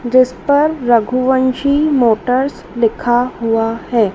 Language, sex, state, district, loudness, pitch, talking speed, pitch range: Hindi, female, Madhya Pradesh, Dhar, -14 LUFS, 250 Hz, 100 wpm, 230-260 Hz